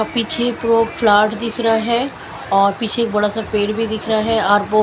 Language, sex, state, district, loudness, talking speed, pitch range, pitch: Hindi, female, Chandigarh, Chandigarh, -17 LUFS, 250 wpm, 210-230 Hz, 225 Hz